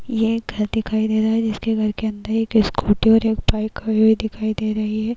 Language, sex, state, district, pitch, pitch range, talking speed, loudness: Hindi, female, Uttar Pradesh, Jyotiba Phule Nagar, 220 Hz, 215-225 Hz, 255 wpm, -20 LUFS